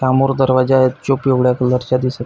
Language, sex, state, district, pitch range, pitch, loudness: Marathi, male, Maharashtra, Pune, 125-135 Hz, 130 Hz, -15 LUFS